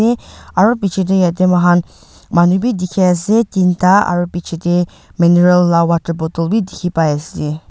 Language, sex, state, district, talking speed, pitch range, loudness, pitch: Nagamese, female, Nagaland, Dimapur, 155 wpm, 170-190 Hz, -14 LUFS, 180 Hz